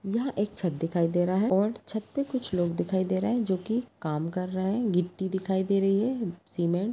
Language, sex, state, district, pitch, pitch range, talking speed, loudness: Hindi, female, Bihar, Begusarai, 190 Hz, 180-220 Hz, 250 wpm, -28 LUFS